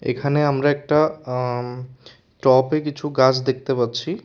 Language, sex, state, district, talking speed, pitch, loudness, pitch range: Bengali, male, Tripura, West Tripura, 115 wpm, 130 Hz, -20 LUFS, 125-145 Hz